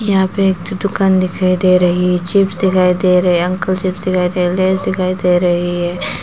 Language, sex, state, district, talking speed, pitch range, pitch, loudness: Hindi, female, Arunachal Pradesh, Papum Pare, 210 wpm, 180-190 Hz, 185 Hz, -14 LUFS